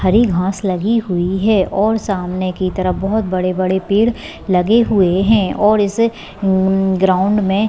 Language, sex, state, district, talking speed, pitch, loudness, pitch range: Hindi, female, Bihar, Madhepura, 155 wpm, 195 Hz, -15 LUFS, 185-210 Hz